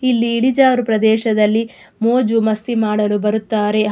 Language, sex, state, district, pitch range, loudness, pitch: Kannada, female, Karnataka, Mysore, 215-235 Hz, -16 LUFS, 220 Hz